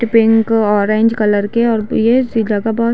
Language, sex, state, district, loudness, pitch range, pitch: Hindi, female, Chhattisgarh, Bilaspur, -14 LUFS, 215-230 Hz, 225 Hz